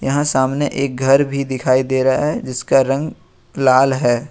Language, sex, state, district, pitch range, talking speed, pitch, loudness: Hindi, male, Jharkhand, Ranchi, 130-140 Hz, 180 wpm, 130 Hz, -16 LUFS